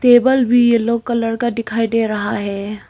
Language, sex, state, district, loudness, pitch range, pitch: Hindi, female, Arunachal Pradesh, Longding, -16 LUFS, 215-240 Hz, 230 Hz